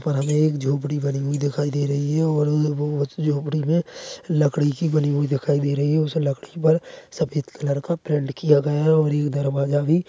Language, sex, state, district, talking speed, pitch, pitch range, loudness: Hindi, male, Chhattisgarh, Bilaspur, 215 wpm, 150 Hz, 145-155 Hz, -22 LUFS